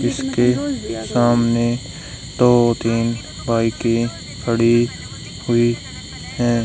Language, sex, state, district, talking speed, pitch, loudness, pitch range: Hindi, male, Haryana, Rohtak, 70 wpm, 120 Hz, -18 LUFS, 115-120 Hz